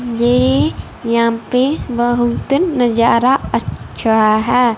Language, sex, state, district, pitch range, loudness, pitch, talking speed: Hindi, female, Punjab, Fazilka, 220-250 Hz, -15 LUFS, 235 Hz, 75 wpm